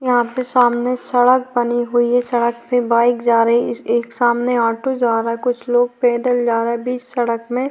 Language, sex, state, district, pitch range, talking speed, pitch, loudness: Hindi, female, Bihar, Vaishali, 235-245 Hz, 220 wpm, 240 Hz, -17 LUFS